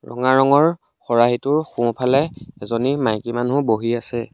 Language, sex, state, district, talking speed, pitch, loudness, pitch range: Assamese, male, Assam, Sonitpur, 140 wpm, 125 Hz, -19 LUFS, 120-140 Hz